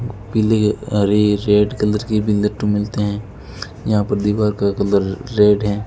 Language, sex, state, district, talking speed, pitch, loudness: Hindi, male, Rajasthan, Bikaner, 145 wpm, 105 Hz, -17 LUFS